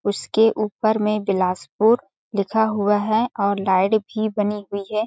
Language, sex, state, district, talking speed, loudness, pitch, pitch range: Hindi, female, Chhattisgarh, Balrampur, 155 wpm, -21 LUFS, 210 Hz, 200-220 Hz